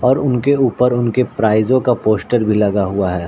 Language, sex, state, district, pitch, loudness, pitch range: Hindi, male, Bihar, Saran, 120 Hz, -15 LUFS, 105-125 Hz